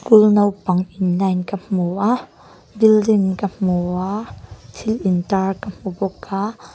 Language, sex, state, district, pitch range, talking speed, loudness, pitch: Mizo, female, Mizoram, Aizawl, 180-210 Hz, 150 wpm, -19 LUFS, 195 Hz